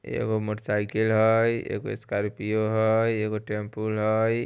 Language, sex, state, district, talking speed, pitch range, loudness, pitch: Hindi, male, Bihar, Muzaffarpur, 120 wpm, 105-110 Hz, -26 LUFS, 110 Hz